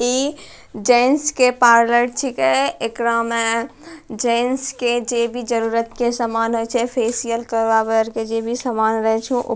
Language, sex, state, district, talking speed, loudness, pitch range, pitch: Angika, female, Bihar, Bhagalpur, 165 wpm, -18 LUFS, 225-245 Hz, 235 Hz